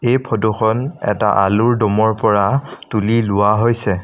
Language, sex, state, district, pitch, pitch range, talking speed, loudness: Assamese, male, Assam, Sonitpur, 110 Hz, 105-120 Hz, 135 wpm, -16 LUFS